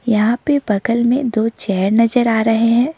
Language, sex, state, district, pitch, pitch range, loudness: Hindi, female, Sikkim, Gangtok, 230 Hz, 220-245 Hz, -16 LUFS